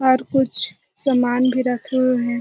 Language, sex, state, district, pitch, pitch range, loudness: Hindi, female, Bihar, Jahanabad, 255 Hz, 245-260 Hz, -18 LUFS